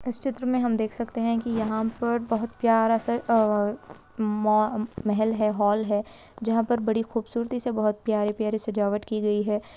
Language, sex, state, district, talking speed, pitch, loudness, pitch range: Hindi, female, Uttarakhand, Tehri Garhwal, 180 wpm, 220 Hz, -25 LUFS, 215-235 Hz